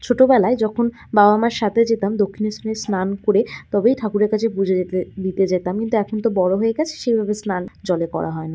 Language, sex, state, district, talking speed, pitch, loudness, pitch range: Bengali, female, West Bengal, Kolkata, 205 wpm, 210 Hz, -19 LUFS, 190-225 Hz